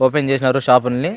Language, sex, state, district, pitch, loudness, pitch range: Telugu, male, Andhra Pradesh, Anantapur, 130 Hz, -16 LUFS, 125-135 Hz